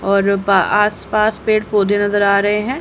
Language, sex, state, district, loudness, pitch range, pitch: Hindi, female, Haryana, Charkhi Dadri, -15 LUFS, 200-215 Hz, 205 Hz